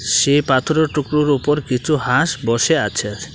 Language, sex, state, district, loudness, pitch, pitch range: Bengali, male, Tripura, Dhalai, -17 LUFS, 145 Hz, 125-150 Hz